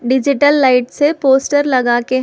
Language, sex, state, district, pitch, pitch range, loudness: Hindi, female, Telangana, Hyderabad, 265 Hz, 255-290 Hz, -13 LUFS